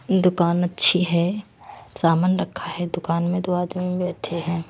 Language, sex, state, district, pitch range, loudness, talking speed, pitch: Hindi, female, Himachal Pradesh, Shimla, 170-180 Hz, -20 LUFS, 155 wpm, 175 Hz